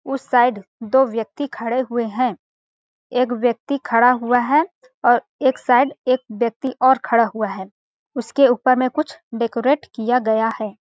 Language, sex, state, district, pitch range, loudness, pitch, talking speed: Hindi, female, Chhattisgarh, Balrampur, 230-265 Hz, -19 LUFS, 245 Hz, 160 wpm